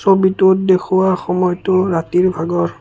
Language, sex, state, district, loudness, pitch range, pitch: Assamese, male, Assam, Kamrup Metropolitan, -15 LUFS, 175-190 Hz, 185 Hz